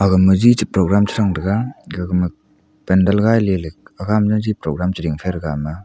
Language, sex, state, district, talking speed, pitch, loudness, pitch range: Wancho, male, Arunachal Pradesh, Longding, 175 wpm, 95 Hz, -17 LUFS, 90-105 Hz